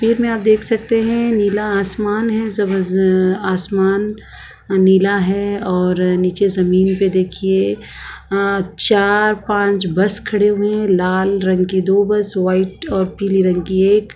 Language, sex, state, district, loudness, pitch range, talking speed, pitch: Hindi, female, Chhattisgarh, Bastar, -16 LUFS, 185-210 Hz, 155 wpm, 195 Hz